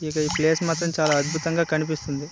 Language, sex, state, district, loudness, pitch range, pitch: Telugu, male, Andhra Pradesh, Visakhapatnam, -23 LUFS, 150-165 Hz, 155 Hz